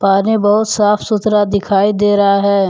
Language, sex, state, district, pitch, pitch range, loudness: Hindi, male, Jharkhand, Deoghar, 205 Hz, 200-210 Hz, -13 LUFS